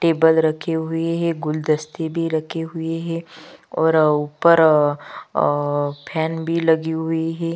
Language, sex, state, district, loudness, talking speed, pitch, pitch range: Hindi, female, Chhattisgarh, Kabirdham, -20 LUFS, 145 wpm, 160 Hz, 155-165 Hz